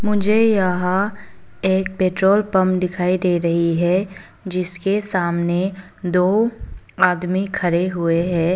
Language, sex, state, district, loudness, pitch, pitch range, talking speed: Hindi, female, Arunachal Pradesh, Papum Pare, -19 LUFS, 185 Hz, 180-195 Hz, 110 wpm